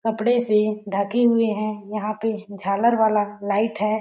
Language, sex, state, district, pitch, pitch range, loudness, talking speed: Hindi, female, Chhattisgarh, Balrampur, 215 Hz, 210-225 Hz, -22 LUFS, 165 wpm